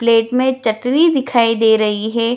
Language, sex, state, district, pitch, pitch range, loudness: Hindi, female, Bihar, Jamui, 235 Hz, 225-255 Hz, -15 LUFS